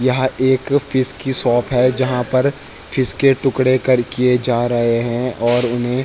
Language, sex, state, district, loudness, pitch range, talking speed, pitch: Hindi, male, Uttarakhand, Tehri Garhwal, -16 LUFS, 120-130 Hz, 180 wpm, 125 Hz